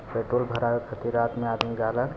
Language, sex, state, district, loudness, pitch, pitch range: Hindi, male, Bihar, Gopalganj, -27 LUFS, 115 Hz, 115-120 Hz